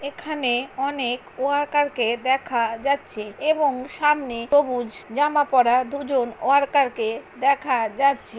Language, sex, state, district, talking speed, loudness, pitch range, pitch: Bengali, female, West Bengal, Paschim Medinipur, 115 wpm, -22 LUFS, 245-285 Hz, 265 Hz